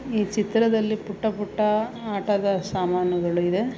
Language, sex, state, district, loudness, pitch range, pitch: Kannada, female, Karnataka, Mysore, -24 LUFS, 195-220 Hz, 210 Hz